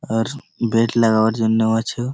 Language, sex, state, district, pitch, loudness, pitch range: Bengali, male, West Bengal, Malda, 115 Hz, -18 LUFS, 110-120 Hz